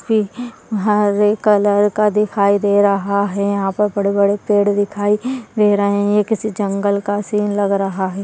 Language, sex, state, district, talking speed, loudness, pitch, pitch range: Hindi, female, Uttarakhand, Tehri Garhwal, 160 wpm, -16 LUFS, 205 Hz, 200-210 Hz